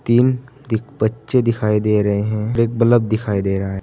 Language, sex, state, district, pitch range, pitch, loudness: Hindi, male, Uttar Pradesh, Saharanpur, 105-120 Hz, 110 Hz, -18 LUFS